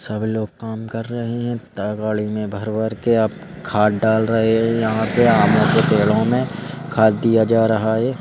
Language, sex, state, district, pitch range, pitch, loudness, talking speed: Hindi, male, Madhya Pradesh, Bhopal, 110-115 Hz, 110 Hz, -18 LUFS, 195 wpm